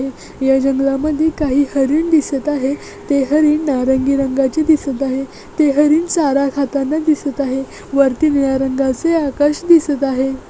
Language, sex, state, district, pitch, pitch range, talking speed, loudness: Marathi, female, Maharashtra, Nagpur, 280 Hz, 270-300 Hz, 135 wpm, -16 LUFS